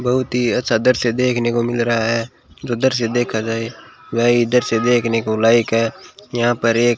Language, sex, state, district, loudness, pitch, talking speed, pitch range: Hindi, male, Rajasthan, Bikaner, -18 LUFS, 120 Hz, 200 wpm, 115-120 Hz